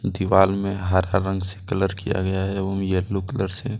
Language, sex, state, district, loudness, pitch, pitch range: Hindi, male, Jharkhand, Deoghar, -23 LUFS, 95 Hz, 95-100 Hz